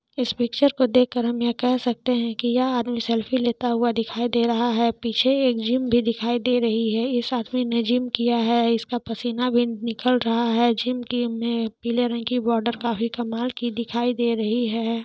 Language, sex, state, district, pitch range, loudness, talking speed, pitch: Hindi, female, Jharkhand, Sahebganj, 230-245 Hz, -23 LUFS, 205 wpm, 240 Hz